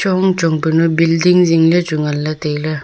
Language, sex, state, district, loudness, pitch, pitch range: Wancho, female, Arunachal Pradesh, Longding, -14 LUFS, 165 Hz, 155-175 Hz